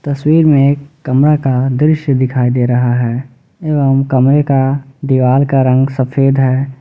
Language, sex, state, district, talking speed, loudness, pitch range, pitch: Hindi, male, Jharkhand, Ranchi, 165 wpm, -12 LUFS, 130-140 Hz, 135 Hz